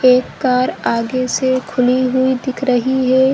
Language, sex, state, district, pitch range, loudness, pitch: Hindi, female, Chhattisgarh, Bilaspur, 250-260 Hz, -16 LUFS, 255 Hz